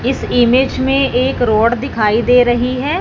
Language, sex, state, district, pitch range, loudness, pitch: Hindi, male, Punjab, Fazilka, 240-265 Hz, -13 LUFS, 250 Hz